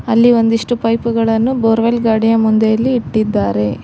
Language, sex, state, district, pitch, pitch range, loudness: Kannada, female, Karnataka, Koppal, 225 Hz, 220-235 Hz, -14 LUFS